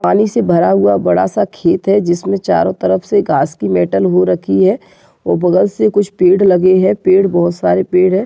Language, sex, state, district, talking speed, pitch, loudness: Hindi, male, Jharkhand, Sahebganj, 220 wpm, 180 Hz, -12 LUFS